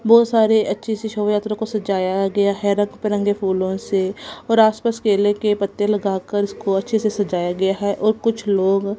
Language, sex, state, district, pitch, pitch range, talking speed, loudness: Hindi, female, Punjab, Kapurthala, 205 Hz, 195-215 Hz, 195 wpm, -19 LUFS